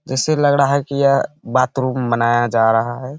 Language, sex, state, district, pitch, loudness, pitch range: Hindi, male, Bihar, Bhagalpur, 130 Hz, -17 LUFS, 120-140 Hz